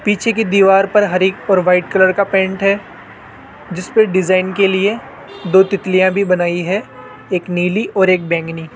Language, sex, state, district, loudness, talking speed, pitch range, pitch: Hindi, male, Rajasthan, Jaipur, -14 LUFS, 170 wpm, 185-200 Hz, 190 Hz